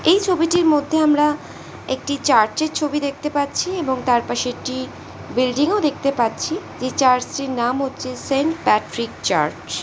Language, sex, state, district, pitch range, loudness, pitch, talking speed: Bengali, female, West Bengal, North 24 Parganas, 255-310 Hz, -20 LUFS, 280 Hz, 165 wpm